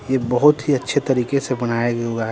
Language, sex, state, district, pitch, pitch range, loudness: Hindi, male, Bihar, Patna, 130 Hz, 120-140 Hz, -19 LUFS